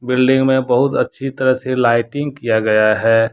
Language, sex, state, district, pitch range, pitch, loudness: Hindi, male, Jharkhand, Deoghar, 115-130 Hz, 125 Hz, -15 LUFS